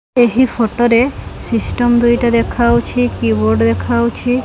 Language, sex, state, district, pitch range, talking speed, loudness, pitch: Odia, female, Odisha, Khordha, 170-240 Hz, 120 wpm, -14 LUFS, 235 Hz